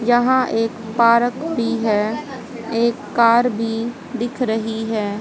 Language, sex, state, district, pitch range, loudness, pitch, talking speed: Hindi, female, Haryana, Jhajjar, 225-240 Hz, -19 LUFS, 230 Hz, 125 wpm